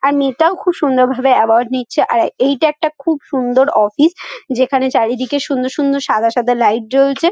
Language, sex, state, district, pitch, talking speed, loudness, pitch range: Bengali, female, West Bengal, Kolkata, 270 Hz, 190 wpm, -14 LUFS, 255-285 Hz